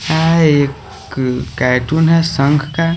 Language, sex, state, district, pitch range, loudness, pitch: Hindi, male, Haryana, Rohtak, 130-165 Hz, -14 LUFS, 150 Hz